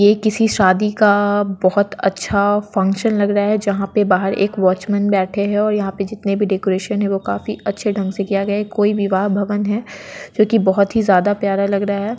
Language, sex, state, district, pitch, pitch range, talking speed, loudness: Hindi, female, Bihar, Sitamarhi, 200 Hz, 195-210 Hz, 215 wpm, -17 LUFS